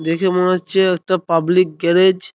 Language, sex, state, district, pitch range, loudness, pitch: Bengali, male, West Bengal, North 24 Parganas, 170-185 Hz, -16 LUFS, 180 Hz